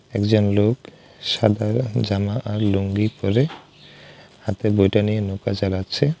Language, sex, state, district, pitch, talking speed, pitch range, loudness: Bengali, male, West Bengal, Alipurduar, 105 Hz, 115 wpm, 100-110 Hz, -21 LUFS